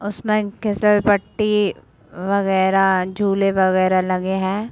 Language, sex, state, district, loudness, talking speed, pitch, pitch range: Hindi, female, Chhattisgarh, Raigarh, -18 LUFS, 75 wpm, 195 Hz, 190-210 Hz